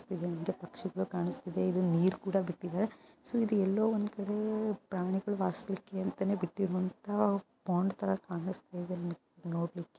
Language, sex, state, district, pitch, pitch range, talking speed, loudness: Kannada, female, Karnataka, Mysore, 190 Hz, 180-205 Hz, 125 wpm, -34 LUFS